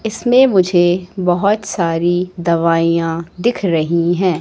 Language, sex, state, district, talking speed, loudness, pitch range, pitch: Hindi, female, Madhya Pradesh, Katni, 110 wpm, -15 LUFS, 170-190 Hz, 175 Hz